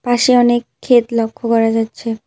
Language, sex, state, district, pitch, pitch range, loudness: Bengali, female, West Bengal, Cooch Behar, 235 Hz, 225-245 Hz, -15 LUFS